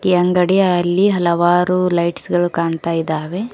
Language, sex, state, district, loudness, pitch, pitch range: Kannada, female, Karnataka, Koppal, -16 LUFS, 175 Hz, 170-180 Hz